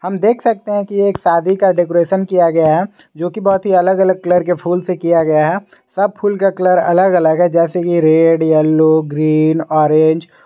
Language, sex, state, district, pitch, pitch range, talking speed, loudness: Hindi, male, Jharkhand, Garhwa, 175 Hz, 160-190 Hz, 210 wpm, -13 LUFS